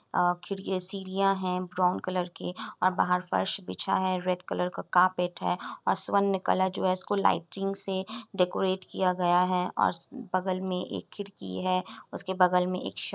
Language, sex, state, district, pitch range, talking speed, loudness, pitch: Hindi, female, Bihar, Kishanganj, 180-195 Hz, 185 wpm, -25 LUFS, 185 Hz